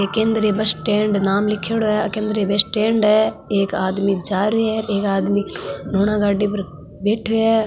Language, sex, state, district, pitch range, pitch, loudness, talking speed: Marwari, female, Rajasthan, Nagaur, 200-215 Hz, 210 Hz, -19 LUFS, 180 wpm